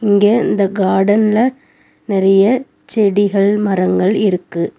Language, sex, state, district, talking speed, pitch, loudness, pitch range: Tamil, female, Tamil Nadu, Nilgiris, 90 wpm, 200 Hz, -14 LUFS, 195-210 Hz